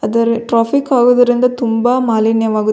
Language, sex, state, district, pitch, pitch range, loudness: Kannada, female, Karnataka, Belgaum, 235 Hz, 225-245 Hz, -13 LUFS